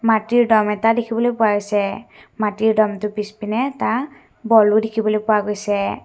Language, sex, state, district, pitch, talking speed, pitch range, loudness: Assamese, female, Assam, Kamrup Metropolitan, 215 Hz, 140 wpm, 210-225 Hz, -18 LUFS